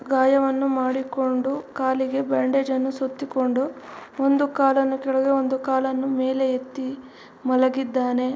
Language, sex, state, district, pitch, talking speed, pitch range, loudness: Kannada, female, Karnataka, Mysore, 265 Hz, 95 wpm, 260-270 Hz, -23 LUFS